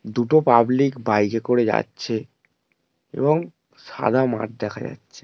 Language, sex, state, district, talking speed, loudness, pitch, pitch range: Bengali, male, West Bengal, Paschim Medinipur, 125 wpm, -21 LUFS, 120 Hz, 105-130 Hz